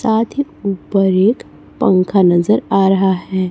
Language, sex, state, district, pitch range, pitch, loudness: Hindi, female, Chhattisgarh, Raipur, 185-215 Hz, 195 Hz, -15 LUFS